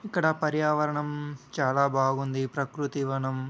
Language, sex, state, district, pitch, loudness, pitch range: Telugu, male, Telangana, Karimnagar, 140 Hz, -28 LUFS, 135-150 Hz